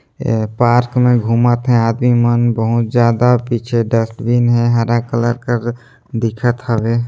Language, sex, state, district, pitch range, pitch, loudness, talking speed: Chhattisgarhi, male, Chhattisgarh, Sarguja, 115-120 Hz, 120 Hz, -15 LUFS, 145 wpm